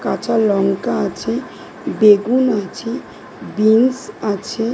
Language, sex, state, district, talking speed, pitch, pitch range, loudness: Bengali, female, West Bengal, Dakshin Dinajpur, 90 wpm, 220 Hz, 205-235 Hz, -17 LUFS